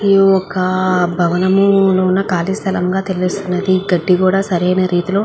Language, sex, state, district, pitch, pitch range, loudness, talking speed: Telugu, female, Andhra Pradesh, Guntur, 185 Hz, 180-195 Hz, -14 LUFS, 150 wpm